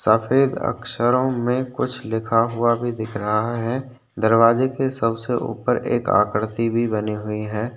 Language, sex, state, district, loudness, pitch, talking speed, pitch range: Hindi, male, Chhattisgarh, Korba, -21 LUFS, 115 Hz, 155 wpm, 110-125 Hz